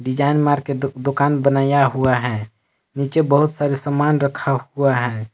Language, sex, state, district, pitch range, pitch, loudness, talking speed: Hindi, male, Jharkhand, Palamu, 130-145 Hz, 140 Hz, -18 LUFS, 170 wpm